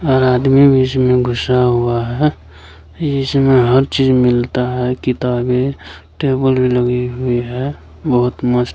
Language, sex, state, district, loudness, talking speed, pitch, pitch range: Hindi, male, Bihar, Kishanganj, -15 LUFS, 145 wpm, 125 Hz, 125-135 Hz